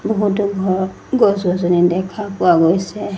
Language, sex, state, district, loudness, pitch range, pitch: Assamese, female, Assam, Sonitpur, -16 LUFS, 180-205 Hz, 190 Hz